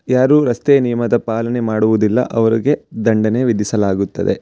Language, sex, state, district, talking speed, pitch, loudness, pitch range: Kannada, male, Karnataka, Mysore, 110 wpm, 115 Hz, -15 LUFS, 110-125 Hz